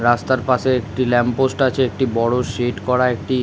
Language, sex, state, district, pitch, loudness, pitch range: Bengali, male, West Bengal, Kolkata, 125 Hz, -18 LUFS, 120-130 Hz